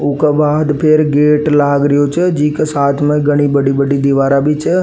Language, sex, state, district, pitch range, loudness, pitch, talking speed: Rajasthani, male, Rajasthan, Nagaur, 140-150 Hz, -12 LUFS, 145 Hz, 225 wpm